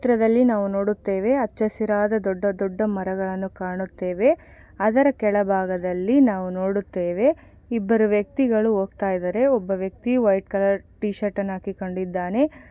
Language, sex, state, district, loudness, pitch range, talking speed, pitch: Kannada, female, Karnataka, Shimoga, -22 LUFS, 190-225 Hz, 120 wpm, 200 Hz